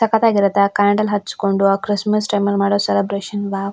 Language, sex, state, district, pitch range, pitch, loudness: Kannada, female, Karnataka, Shimoga, 200-210 Hz, 200 Hz, -17 LUFS